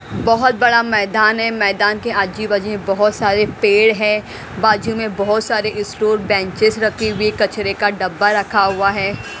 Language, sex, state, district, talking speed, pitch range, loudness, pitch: Hindi, female, Haryana, Rohtak, 170 wpm, 205-220 Hz, -16 LUFS, 210 Hz